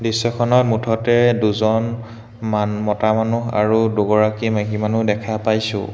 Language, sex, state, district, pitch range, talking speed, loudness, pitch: Assamese, male, Assam, Hailakandi, 105-115 Hz, 120 wpm, -18 LUFS, 110 Hz